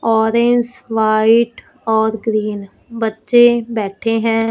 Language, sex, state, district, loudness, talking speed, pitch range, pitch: Hindi, female, Punjab, Fazilka, -15 LUFS, 95 wpm, 220-235 Hz, 225 Hz